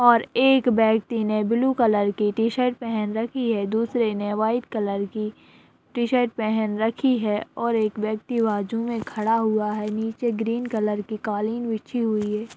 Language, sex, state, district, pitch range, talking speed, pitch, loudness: Hindi, female, Chhattisgarh, Raigarh, 215-235 Hz, 180 wpm, 225 Hz, -23 LUFS